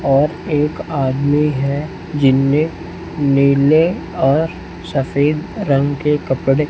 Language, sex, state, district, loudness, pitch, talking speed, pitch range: Hindi, male, Chhattisgarh, Raipur, -16 LUFS, 145 Hz, 100 wpm, 140-150 Hz